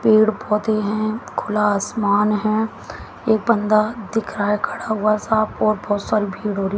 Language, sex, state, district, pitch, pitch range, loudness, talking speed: Hindi, female, Haryana, Jhajjar, 215 Hz, 205-220 Hz, -20 LUFS, 175 wpm